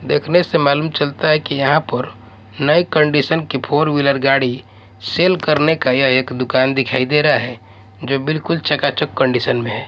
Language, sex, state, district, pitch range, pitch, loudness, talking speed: Hindi, male, Odisha, Malkangiri, 125-155 Hz, 140 Hz, -16 LUFS, 175 wpm